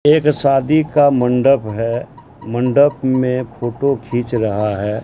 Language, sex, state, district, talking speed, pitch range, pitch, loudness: Hindi, male, Bihar, Katihar, 130 wpm, 115-140 Hz, 130 Hz, -16 LUFS